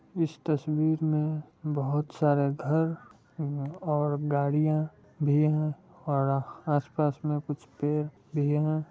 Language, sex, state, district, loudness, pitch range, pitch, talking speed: Hindi, male, Bihar, Muzaffarpur, -29 LUFS, 145-155 Hz, 150 Hz, 130 wpm